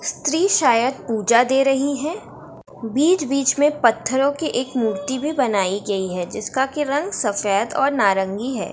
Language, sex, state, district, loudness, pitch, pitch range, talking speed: Hindi, female, Bihar, Gaya, -20 LUFS, 260 Hz, 215-285 Hz, 160 wpm